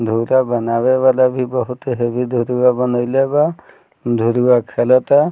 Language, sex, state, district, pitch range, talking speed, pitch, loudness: Bhojpuri, male, Bihar, Muzaffarpur, 120-130 Hz, 125 wpm, 125 Hz, -16 LUFS